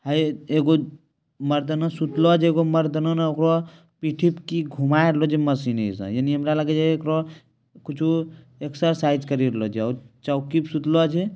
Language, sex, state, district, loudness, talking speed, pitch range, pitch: Maithili, male, Bihar, Bhagalpur, -22 LUFS, 170 wpm, 145-165 Hz, 155 Hz